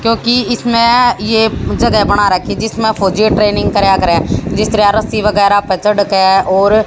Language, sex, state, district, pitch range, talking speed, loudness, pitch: Hindi, female, Haryana, Jhajjar, 200-225 Hz, 165 wpm, -11 LUFS, 210 Hz